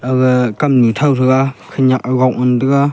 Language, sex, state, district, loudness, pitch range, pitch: Wancho, male, Arunachal Pradesh, Longding, -13 LUFS, 125-135 Hz, 130 Hz